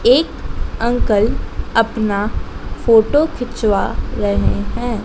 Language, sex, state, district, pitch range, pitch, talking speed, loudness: Hindi, female, Madhya Pradesh, Dhar, 200-240 Hz, 220 Hz, 85 wpm, -17 LUFS